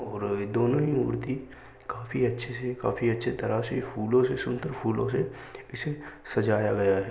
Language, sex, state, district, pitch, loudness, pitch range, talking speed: Hindi, male, Uttar Pradesh, Muzaffarnagar, 125 Hz, -28 LUFS, 110-130 Hz, 170 wpm